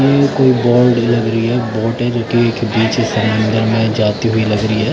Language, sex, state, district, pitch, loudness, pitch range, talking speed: Hindi, male, Bihar, Katihar, 115 Hz, -14 LUFS, 110-120 Hz, 170 wpm